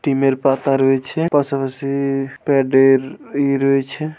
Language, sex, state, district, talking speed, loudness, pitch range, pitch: Bengali, male, West Bengal, Paschim Medinipur, 115 wpm, -17 LUFS, 135-140 Hz, 135 Hz